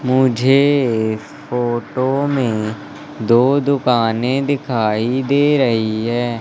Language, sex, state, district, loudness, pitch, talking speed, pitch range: Hindi, male, Madhya Pradesh, Katni, -17 LUFS, 125 Hz, 95 wpm, 115-140 Hz